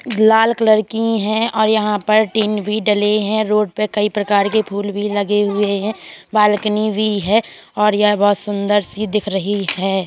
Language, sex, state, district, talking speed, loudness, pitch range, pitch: Hindi, male, Uttar Pradesh, Hamirpur, 190 wpm, -16 LUFS, 205-215 Hz, 210 Hz